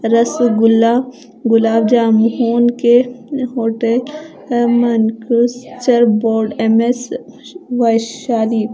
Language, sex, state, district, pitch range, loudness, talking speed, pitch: Hindi, female, Punjab, Fazilka, 225-245 Hz, -14 LUFS, 60 wpm, 235 Hz